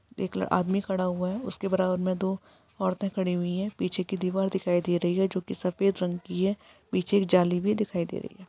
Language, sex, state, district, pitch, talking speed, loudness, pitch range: Hindi, female, Bihar, Gaya, 185 Hz, 240 wpm, -28 LUFS, 180-195 Hz